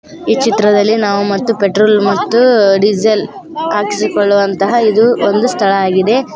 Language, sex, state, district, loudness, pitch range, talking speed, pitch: Kannada, female, Karnataka, Koppal, -11 LUFS, 200-235 Hz, 115 wpm, 210 Hz